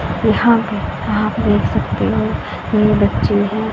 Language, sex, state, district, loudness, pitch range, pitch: Hindi, female, Haryana, Rohtak, -16 LUFS, 210-225 Hz, 215 Hz